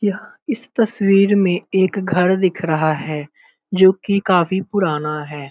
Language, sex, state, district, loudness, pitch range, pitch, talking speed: Hindi, male, Bihar, Muzaffarpur, -18 LUFS, 155-200 Hz, 190 Hz, 150 wpm